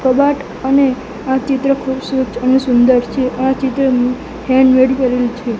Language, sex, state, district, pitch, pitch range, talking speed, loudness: Gujarati, male, Gujarat, Gandhinagar, 260 Hz, 255-265 Hz, 140 wpm, -14 LUFS